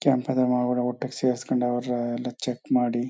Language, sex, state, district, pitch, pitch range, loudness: Kannada, male, Karnataka, Chamarajanagar, 125 Hz, 120-125 Hz, -26 LUFS